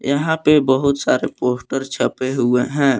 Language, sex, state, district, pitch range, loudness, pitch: Hindi, male, Jharkhand, Palamu, 130-140 Hz, -18 LUFS, 135 Hz